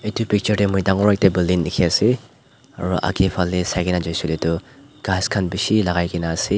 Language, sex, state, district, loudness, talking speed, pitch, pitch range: Nagamese, male, Nagaland, Dimapur, -20 LUFS, 190 wpm, 95 Hz, 90-105 Hz